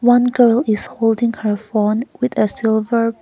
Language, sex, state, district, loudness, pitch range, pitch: English, female, Nagaland, Kohima, -17 LUFS, 220-245 Hz, 230 Hz